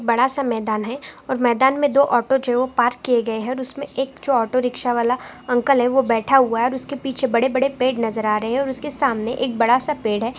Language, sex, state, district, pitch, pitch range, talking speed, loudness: Hindi, female, Andhra Pradesh, Guntur, 255 Hz, 235-270 Hz, 275 wpm, -20 LUFS